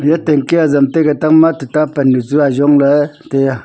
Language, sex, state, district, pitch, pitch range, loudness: Wancho, male, Arunachal Pradesh, Longding, 145 Hz, 140-155 Hz, -12 LUFS